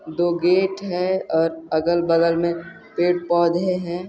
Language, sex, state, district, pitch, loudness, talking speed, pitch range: Hindi, male, Chhattisgarh, Sarguja, 175 Hz, -21 LUFS, 145 wpm, 170-180 Hz